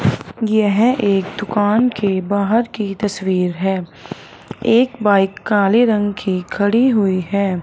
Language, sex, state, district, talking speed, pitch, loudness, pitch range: Hindi, male, Punjab, Fazilka, 125 wpm, 205 Hz, -17 LUFS, 190-220 Hz